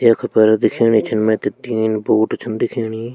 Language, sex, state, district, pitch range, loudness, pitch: Garhwali, male, Uttarakhand, Tehri Garhwal, 110-115 Hz, -17 LUFS, 110 Hz